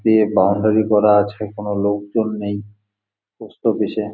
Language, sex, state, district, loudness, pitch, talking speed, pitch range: Bengali, male, West Bengal, Jalpaiguri, -18 LUFS, 105 Hz, 145 wpm, 100-110 Hz